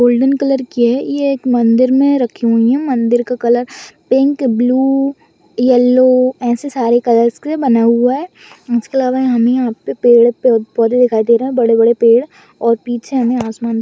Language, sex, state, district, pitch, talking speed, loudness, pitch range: Hindi, female, West Bengal, Dakshin Dinajpur, 245 Hz, 180 wpm, -13 LUFS, 235-265 Hz